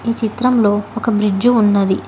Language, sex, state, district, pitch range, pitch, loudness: Telugu, female, Telangana, Hyderabad, 205-235 Hz, 220 Hz, -15 LUFS